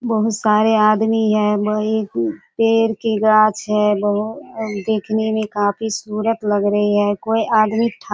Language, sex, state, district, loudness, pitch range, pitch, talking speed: Hindi, female, Bihar, Kishanganj, -18 LUFS, 210-220 Hz, 215 Hz, 155 wpm